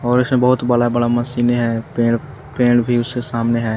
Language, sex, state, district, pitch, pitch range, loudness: Hindi, male, Jharkhand, Palamu, 120 Hz, 120-125 Hz, -17 LUFS